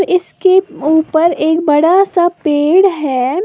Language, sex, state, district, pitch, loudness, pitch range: Hindi, female, Uttar Pradesh, Lalitpur, 330 Hz, -12 LUFS, 310-370 Hz